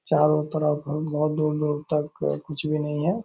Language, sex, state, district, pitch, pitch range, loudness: Hindi, male, Bihar, Purnia, 150 Hz, 150-155 Hz, -25 LUFS